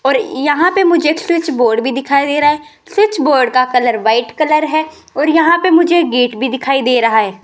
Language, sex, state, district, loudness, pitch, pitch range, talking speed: Hindi, female, Rajasthan, Jaipur, -13 LUFS, 290 Hz, 250-325 Hz, 240 wpm